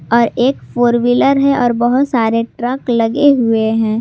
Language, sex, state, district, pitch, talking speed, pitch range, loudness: Hindi, female, Jharkhand, Garhwa, 240 Hz, 180 wpm, 230-260 Hz, -13 LUFS